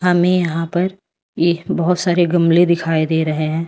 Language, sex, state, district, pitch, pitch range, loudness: Hindi, female, Uttar Pradesh, Lalitpur, 170 Hz, 165-180 Hz, -16 LUFS